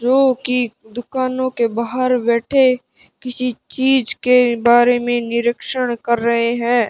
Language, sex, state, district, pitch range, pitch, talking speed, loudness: Hindi, male, Rajasthan, Bikaner, 235-255 Hz, 245 Hz, 130 wpm, -17 LUFS